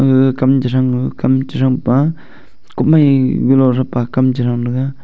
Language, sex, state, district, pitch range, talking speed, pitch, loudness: Wancho, male, Arunachal Pradesh, Longding, 125-135 Hz, 120 wpm, 130 Hz, -14 LUFS